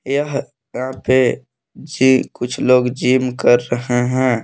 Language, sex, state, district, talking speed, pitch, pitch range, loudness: Hindi, male, Jharkhand, Palamu, 135 wpm, 125 Hz, 125-130 Hz, -17 LUFS